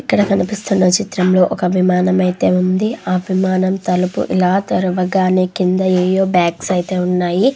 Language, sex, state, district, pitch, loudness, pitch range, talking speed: Telugu, female, Andhra Pradesh, Krishna, 185 Hz, -15 LUFS, 180-190 Hz, 135 wpm